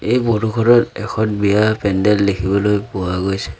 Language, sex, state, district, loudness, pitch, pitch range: Assamese, male, Assam, Sonitpur, -16 LUFS, 105 Hz, 95-110 Hz